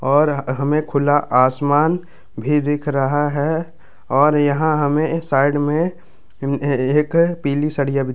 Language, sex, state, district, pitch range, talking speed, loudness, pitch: Hindi, male, Bihar, Madhepura, 140-155 Hz, 140 wpm, -18 LUFS, 145 Hz